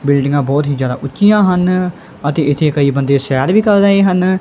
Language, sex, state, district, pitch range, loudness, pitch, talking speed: Punjabi, female, Punjab, Kapurthala, 140-185 Hz, -13 LUFS, 150 Hz, 215 wpm